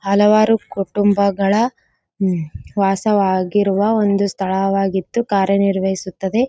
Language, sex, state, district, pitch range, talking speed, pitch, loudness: Kannada, female, Karnataka, Gulbarga, 190-205 Hz, 65 wpm, 200 Hz, -17 LUFS